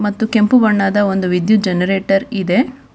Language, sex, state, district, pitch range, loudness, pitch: Kannada, female, Karnataka, Bangalore, 195-220 Hz, -14 LUFS, 205 Hz